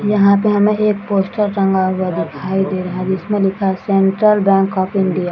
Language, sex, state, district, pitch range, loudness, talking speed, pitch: Hindi, female, Bihar, Jahanabad, 185-205 Hz, -16 LUFS, 215 wpm, 195 Hz